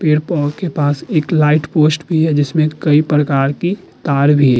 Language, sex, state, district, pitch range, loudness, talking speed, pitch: Hindi, male, Uttar Pradesh, Muzaffarnagar, 145-160 Hz, -15 LUFS, 195 wpm, 150 Hz